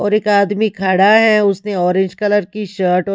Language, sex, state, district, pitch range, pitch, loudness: Hindi, female, Haryana, Rohtak, 190-210 Hz, 200 Hz, -14 LUFS